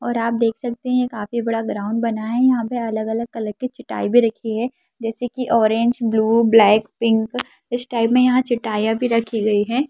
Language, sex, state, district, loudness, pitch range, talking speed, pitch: Hindi, female, Bihar, Saharsa, -19 LUFS, 225-245 Hz, 205 wpm, 230 Hz